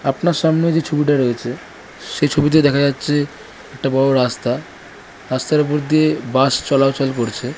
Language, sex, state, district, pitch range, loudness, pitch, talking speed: Bengali, female, West Bengal, North 24 Parganas, 130-150 Hz, -17 LUFS, 140 Hz, 150 wpm